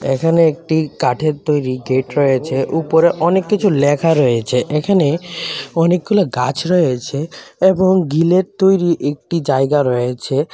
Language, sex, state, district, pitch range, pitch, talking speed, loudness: Bengali, male, Tripura, West Tripura, 135-175 Hz, 155 Hz, 120 wpm, -15 LUFS